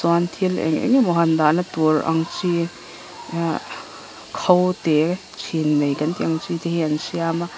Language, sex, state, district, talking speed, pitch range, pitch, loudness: Mizo, female, Mizoram, Aizawl, 180 wpm, 160-175 Hz, 170 Hz, -21 LUFS